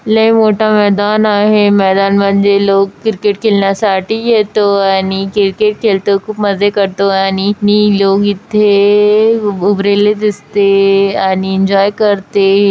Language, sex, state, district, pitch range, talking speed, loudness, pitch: Marathi, female, Maharashtra, Chandrapur, 195-210 Hz, 115 wpm, -11 LUFS, 205 Hz